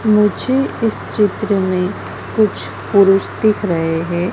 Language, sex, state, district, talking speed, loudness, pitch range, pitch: Hindi, female, Madhya Pradesh, Dhar, 125 wpm, -16 LUFS, 185-215 Hz, 205 Hz